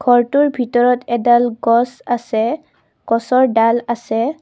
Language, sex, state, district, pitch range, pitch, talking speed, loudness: Assamese, female, Assam, Kamrup Metropolitan, 230-250 Hz, 240 Hz, 110 wpm, -16 LUFS